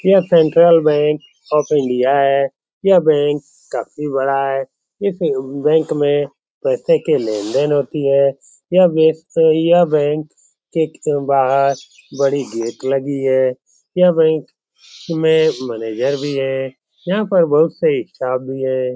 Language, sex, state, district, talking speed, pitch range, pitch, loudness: Hindi, male, Bihar, Lakhisarai, 140 wpm, 135-165 Hz, 145 Hz, -16 LUFS